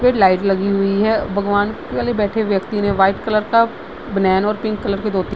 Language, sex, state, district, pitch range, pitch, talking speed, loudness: Hindi, female, Bihar, Vaishali, 195-215 Hz, 205 Hz, 255 wpm, -17 LUFS